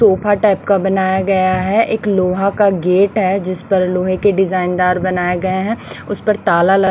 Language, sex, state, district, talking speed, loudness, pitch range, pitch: Hindi, female, Chhattisgarh, Raipur, 200 wpm, -15 LUFS, 185-200 Hz, 190 Hz